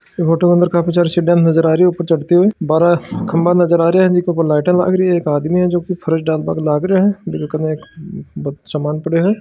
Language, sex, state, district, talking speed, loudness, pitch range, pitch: Marwari, male, Rajasthan, Churu, 240 wpm, -14 LUFS, 160-180 Hz, 170 Hz